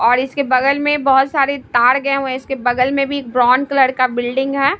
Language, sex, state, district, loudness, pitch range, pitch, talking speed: Hindi, female, Bihar, Patna, -15 LUFS, 255-275 Hz, 270 Hz, 240 wpm